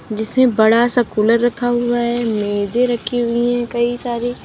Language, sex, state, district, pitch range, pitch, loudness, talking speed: Hindi, female, Uttar Pradesh, Lalitpur, 225-245 Hz, 240 Hz, -17 LUFS, 175 wpm